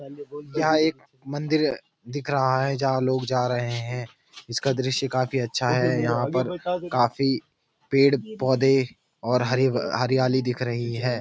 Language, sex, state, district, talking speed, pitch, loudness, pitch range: Hindi, male, Uttarakhand, Uttarkashi, 135 wpm, 130 Hz, -24 LUFS, 125-140 Hz